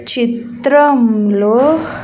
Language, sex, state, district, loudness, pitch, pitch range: Telugu, female, Andhra Pradesh, Sri Satya Sai, -12 LUFS, 235 Hz, 230-285 Hz